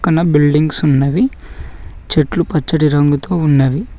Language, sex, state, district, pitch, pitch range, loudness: Telugu, male, Telangana, Mahabubabad, 150 Hz, 135-160 Hz, -14 LUFS